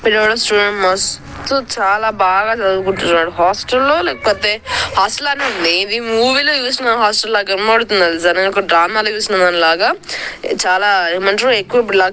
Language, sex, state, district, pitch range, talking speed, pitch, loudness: Telugu, female, Telangana, Nalgonda, 185-230 Hz, 120 wpm, 205 Hz, -14 LUFS